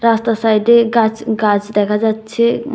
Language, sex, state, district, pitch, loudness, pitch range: Bengali, female, Tripura, West Tripura, 220 Hz, -14 LUFS, 215-230 Hz